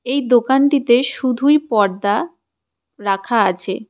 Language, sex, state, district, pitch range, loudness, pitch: Bengali, female, West Bengal, Cooch Behar, 205-270 Hz, -16 LUFS, 245 Hz